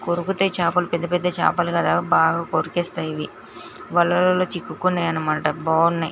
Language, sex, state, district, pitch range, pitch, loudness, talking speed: Telugu, female, Andhra Pradesh, Srikakulam, 160-180 Hz, 175 Hz, -21 LUFS, 100 wpm